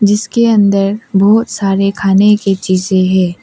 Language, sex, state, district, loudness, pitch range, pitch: Hindi, female, Arunachal Pradesh, Papum Pare, -11 LUFS, 195-210 Hz, 195 Hz